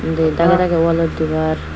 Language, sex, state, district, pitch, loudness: Chakma, female, Tripura, Dhalai, 160 Hz, -16 LUFS